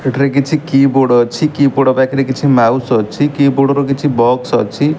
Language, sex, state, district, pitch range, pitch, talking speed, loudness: Odia, male, Odisha, Khordha, 130-140 Hz, 135 Hz, 170 wpm, -12 LUFS